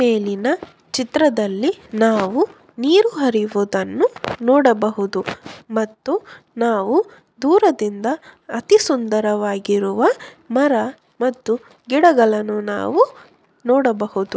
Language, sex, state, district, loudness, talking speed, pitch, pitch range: Kannada, female, Karnataka, Bellary, -18 LUFS, 70 wpm, 240 Hz, 210-315 Hz